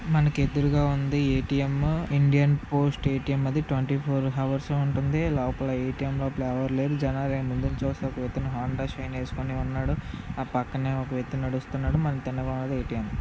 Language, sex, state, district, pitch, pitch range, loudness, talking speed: Telugu, male, Andhra Pradesh, Visakhapatnam, 135 Hz, 130-140 Hz, -27 LUFS, 115 wpm